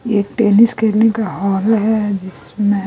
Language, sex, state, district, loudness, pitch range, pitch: Hindi, female, Chhattisgarh, Raipur, -15 LUFS, 200-220 Hz, 210 Hz